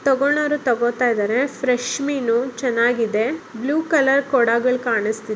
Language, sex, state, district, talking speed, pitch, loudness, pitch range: Kannada, female, Karnataka, Bellary, 100 wpm, 250 Hz, -19 LUFS, 235-275 Hz